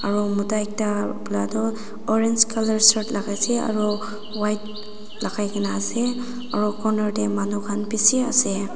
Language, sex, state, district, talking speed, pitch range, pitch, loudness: Nagamese, female, Nagaland, Dimapur, 145 wpm, 205-220 Hz, 210 Hz, -22 LUFS